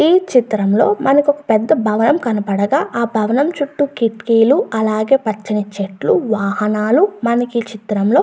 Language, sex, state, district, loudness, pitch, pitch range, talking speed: Telugu, female, Andhra Pradesh, Guntur, -16 LUFS, 220 Hz, 210-250 Hz, 130 wpm